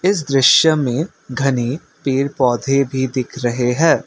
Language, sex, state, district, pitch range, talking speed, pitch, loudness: Hindi, male, Assam, Kamrup Metropolitan, 125-145 Hz, 145 wpm, 135 Hz, -17 LUFS